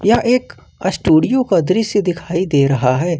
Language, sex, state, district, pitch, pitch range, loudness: Hindi, male, Jharkhand, Ranchi, 180 Hz, 155-220 Hz, -15 LUFS